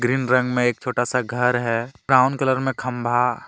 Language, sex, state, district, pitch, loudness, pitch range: Hindi, male, Jharkhand, Deoghar, 125 Hz, -21 LUFS, 120-130 Hz